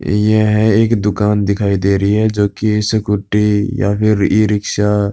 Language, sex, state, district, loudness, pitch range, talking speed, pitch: Hindi, male, Uttar Pradesh, Budaun, -14 LUFS, 100-110 Hz, 165 wpm, 105 Hz